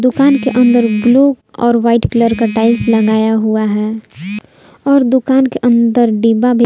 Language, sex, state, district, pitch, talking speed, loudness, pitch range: Hindi, female, Jharkhand, Palamu, 235 Hz, 160 wpm, -12 LUFS, 220-250 Hz